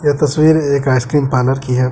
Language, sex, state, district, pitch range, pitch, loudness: Hindi, male, Jharkhand, Deoghar, 130-150 Hz, 140 Hz, -14 LUFS